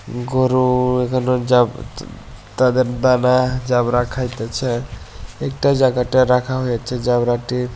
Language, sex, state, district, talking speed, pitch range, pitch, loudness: Bengali, male, Tripura, West Tripura, 95 wpm, 120-130 Hz, 125 Hz, -18 LUFS